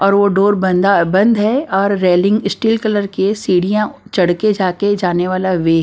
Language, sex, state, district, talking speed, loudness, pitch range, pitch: Hindi, female, Bihar, Patna, 195 wpm, -14 LUFS, 185-210 Hz, 195 Hz